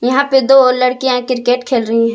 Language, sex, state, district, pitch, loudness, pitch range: Hindi, female, Jharkhand, Ranchi, 255 Hz, -12 LUFS, 245-265 Hz